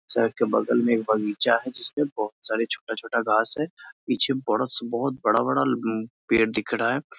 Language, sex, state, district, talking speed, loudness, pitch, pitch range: Hindi, male, Bihar, Muzaffarpur, 190 wpm, -24 LUFS, 115 Hz, 110-135 Hz